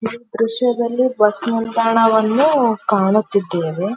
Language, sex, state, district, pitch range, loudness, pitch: Kannada, female, Karnataka, Dharwad, 210-235 Hz, -16 LUFS, 225 Hz